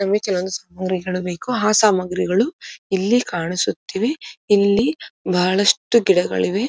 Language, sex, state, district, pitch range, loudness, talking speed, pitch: Kannada, female, Karnataka, Dharwad, 185-220 Hz, -19 LUFS, 100 wpm, 195 Hz